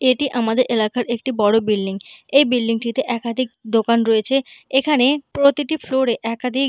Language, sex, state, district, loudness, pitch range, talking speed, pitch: Bengali, female, West Bengal, Purulia, -19 LUFS, 230-270 Hz, 145 wpm, 245 Hz